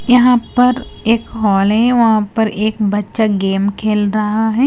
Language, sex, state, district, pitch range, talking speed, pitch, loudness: Hindi, female, Himachal Pradesh, Shimla, 205-230 Hz, 165 wpm, 220 Hz, -14 LUFS